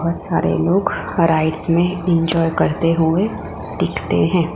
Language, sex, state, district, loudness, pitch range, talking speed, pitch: Hindi, female, Gujarat, Gandhinagar, -17 LUFS, 135-170 Hz, 120 wpm, 165 Hz